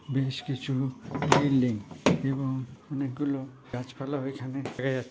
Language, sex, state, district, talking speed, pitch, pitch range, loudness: Bengali, male, West Bengal, Purulia, 115 wpm, 135 Hz, 130-140 Hz, -30 LUFS